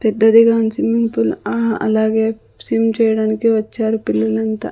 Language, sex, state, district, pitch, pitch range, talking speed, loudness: Telugu, female, Andhra Pradesh, Sri Satya Sai, 220 Hz, 215-225 Hz, 125 wpm, -16 LUFS